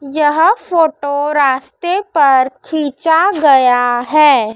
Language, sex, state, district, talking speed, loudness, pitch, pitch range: Hindi, female, Madhya Pradesh, Dhar, 90 wpm, -13 LUFS, 295 Hz, 265-320 Hz